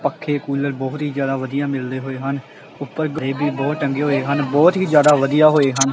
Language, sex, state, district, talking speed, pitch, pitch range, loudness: Punjabi, male, Punjab, Kapurthala, 220 wpm, 140 Hz, 135-150 Hz, -18 LUFS